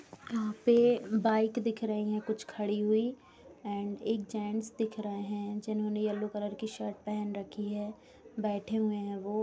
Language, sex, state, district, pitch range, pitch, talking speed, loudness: Hindi, female, Bihar, Gopalganj, 205-220 Hz, 215 Hz, 170 wpm, -33 LUFS